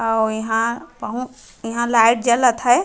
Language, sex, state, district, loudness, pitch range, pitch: Chhattisgarhi, female, Chhattisgarh, Raigarh, -18 LUFS, 225-245 Hz, 235 Hz